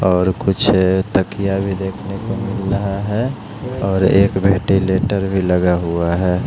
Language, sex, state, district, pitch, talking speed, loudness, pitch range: Hindi, male, Bihar, Patna, 95 Hz, 150 wpm, -17 LUFS, 95-100 Hz